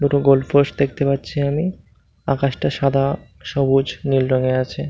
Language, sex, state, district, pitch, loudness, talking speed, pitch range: Bengali, male, West Bengal, Malda, 135 Hz, -19 LUFS, 160 wpm, 130-140 Hz